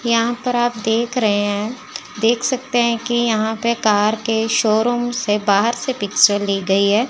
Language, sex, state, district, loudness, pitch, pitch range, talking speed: Hindi, female, Chandigarh, Chandigarh, -18 LUFS, 225 Hz, 210-240 Hz, 185 wpm